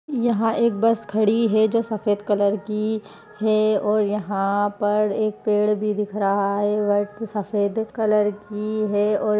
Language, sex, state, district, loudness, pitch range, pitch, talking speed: Hindi, female, Uttar Pradesh, Varanasi, -22 LUFS, 205-220 Hz, 210 Hz, 165 wpm